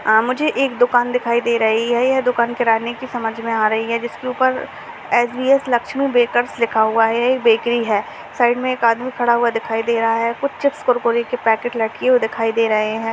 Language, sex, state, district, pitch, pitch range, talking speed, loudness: Hindi, female, Uttar Pradesh, Gorakhpur, 235 Hz, 225-250 Hz, 215 wpm, -18 LUFS